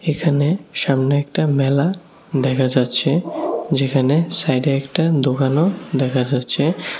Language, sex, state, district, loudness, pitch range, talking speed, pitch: Bengali, male, Tripura, West Tripura, -18 LUFS, 135-160 Hz, 105 wpm, 140 Hz